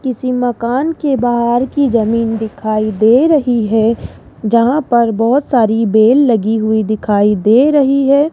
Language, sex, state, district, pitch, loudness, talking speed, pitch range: Hindi, female, Rajasthan, Jaipur, 235 Hz, -13 LUFS, 150 wpm, 220-265 Hz